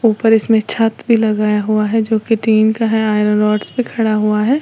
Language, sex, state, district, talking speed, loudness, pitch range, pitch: Hindi, female, Uttar Pradesh, Lalitpur, 235 wpm, -14 LUFS, 215-225 Hz, 220 Hz